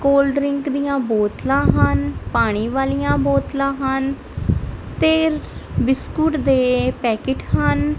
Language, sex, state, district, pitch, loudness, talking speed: Punjabi, female, Punjab, Kapurthala, 265 Hz, -19 LUFS, 105 wpm